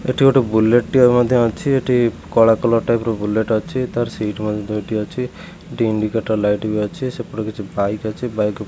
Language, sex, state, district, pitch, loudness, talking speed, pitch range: Odia, male, Odisha, Khordha, 115 Hz, -18 LUFS, 205 wpm, 105-125 Hz